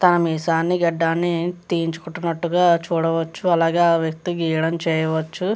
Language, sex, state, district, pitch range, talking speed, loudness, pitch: Telugu, female, Andhra Pradesh, Chittoor, 165-175 Hz, 120 wpm, -20 LUFS, 170 Hz